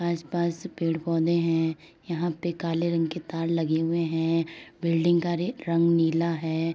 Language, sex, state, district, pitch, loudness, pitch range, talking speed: Hindi, female, Uttar Pradesh, Etah, 165 Hz, -26 LUFS, 165-170 Hz, 170 wpm